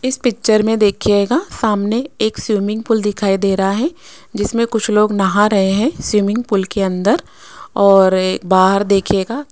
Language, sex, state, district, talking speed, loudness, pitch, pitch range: Hindi, female, Rajasthan, Jaipur, 165 wpm, -15 LUFS, 210 Hz, 195-230 Hz